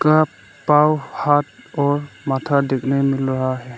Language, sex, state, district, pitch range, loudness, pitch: Hindi, male, Arunachal Pradesh, Lower Dibang Valley, 135-150 Hz, -19 LUFS, 140 Hz